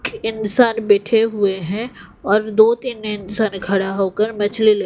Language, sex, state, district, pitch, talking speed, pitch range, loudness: Hindi, female, Odisha, Khordha, 215 Hz, 175 wpm, 200-225 Hz, -18 LUFS